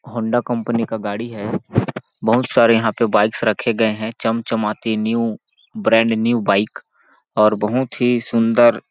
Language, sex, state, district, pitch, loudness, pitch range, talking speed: Hindi, male, Chhattisgarh, Balrampur, 115 Hz, -18 LUFS, 110-120 Hz, 155 wpm